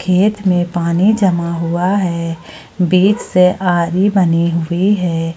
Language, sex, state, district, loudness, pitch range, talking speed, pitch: Hindi, female, Jharkhand, Ranchi, -14 LUFS, 170-190 Hz, 135 wpm, 180 Hz